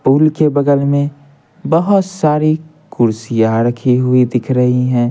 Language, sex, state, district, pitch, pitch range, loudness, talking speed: Hindi, male, Bihar, Patna, 140 Hz, 125-155 Hz, -14 LUFS, 140 wpm